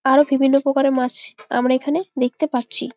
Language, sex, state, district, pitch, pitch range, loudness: Bengali, female, West Bengal, Jalpaiguri, 270 Hz, 255-275 Hz, -19 LUFS